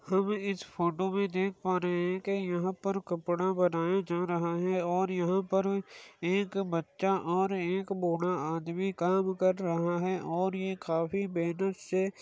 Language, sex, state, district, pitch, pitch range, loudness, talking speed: Hindi, male, Uttar Pradesh, Muzaffarnagar, 185 Hz, 175-195 Hz, -31 LUFS, 165 wpm